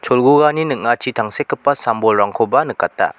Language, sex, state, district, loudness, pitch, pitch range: Garo, male, Meghalaya, West Garo Hills, -16 LUFS, 125 Hz, 115-140 Hz